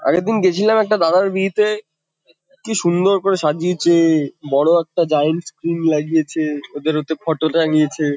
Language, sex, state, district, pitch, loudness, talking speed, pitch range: Bengali, male, West Bengal, Kolkata, 165 Hz, -17 LUFS, 140 wpm, 155-190 Hz